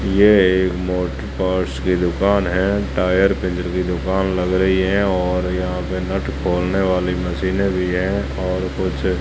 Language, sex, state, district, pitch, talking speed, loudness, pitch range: Hindi, male, Rajasthan, Jaisalmer, 90 Hz, 165 wpm, -19 LUFS, 90-95 Hz